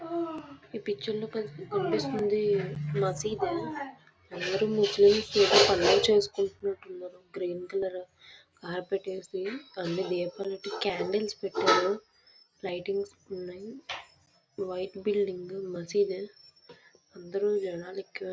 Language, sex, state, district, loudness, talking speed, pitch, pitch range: Telugu, female, Andhra Pradesh, Visakhapatnam, -29 LUFS, 80 wpm, 200 Hz, 185-220 Hz